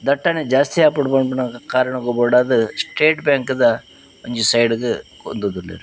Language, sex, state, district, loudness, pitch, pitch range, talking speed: Tulu, male, Karnataka, Dakshina Kannada, -18 LUFS, 130 Hz, 120-140 Hz, 135 wpm